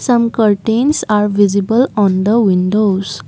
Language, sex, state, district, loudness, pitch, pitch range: English, female, Assam, Kamrup Metropolitan, -13 LUFS, 210 Hz, 195-230 Hz